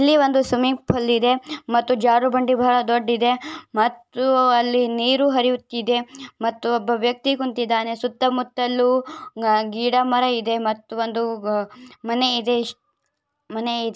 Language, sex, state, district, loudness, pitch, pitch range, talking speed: Kannada, female, Karnataka, Bellary, -20 LUFS, 245 Hz, 235-255 Hz, 120 wpm